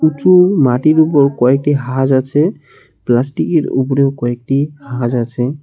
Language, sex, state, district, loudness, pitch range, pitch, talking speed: Bengali, male, West Bengal, Alipurduar, -14 LUFS, 125-150 Hz, 135 Hz, 115 wpm